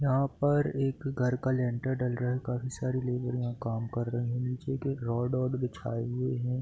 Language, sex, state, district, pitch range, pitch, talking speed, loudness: Hindi, male, Bihar, Darbhanga, 120-130 Hz, 125 Hz, 215 wpm, -31 LUFS